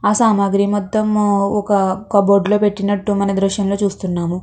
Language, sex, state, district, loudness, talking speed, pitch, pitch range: Telugu, female, Andhra Pradesh, Chittoor, -16 LUFS, 175 wpm, 200 Hz, 195-205 Hz